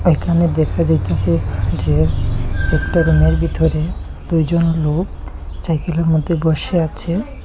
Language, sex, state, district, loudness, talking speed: Bengali, male, Tripura, Unakoti, -17 LUFS, 120 wpm